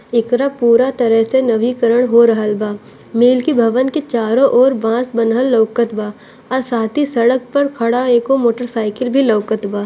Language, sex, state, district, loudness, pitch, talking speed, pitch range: Bhojpuri, female, Bihar, Gopalganj, -14 LUFS, 235 Hz, 175 wpm, 225-255 Hz